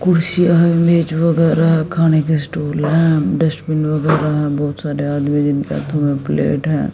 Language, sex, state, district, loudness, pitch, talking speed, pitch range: Hindi, female, Haryana, Jhajjar, -16 LUFS, 155 Hz, 155 wpm, 150-165 Hz